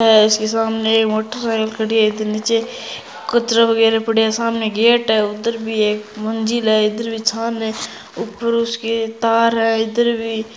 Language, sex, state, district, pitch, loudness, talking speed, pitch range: Hindi, male, Rajasthan, Churu, 225 Hz, -17 LUFS, 160 wpm, 220-230 Hz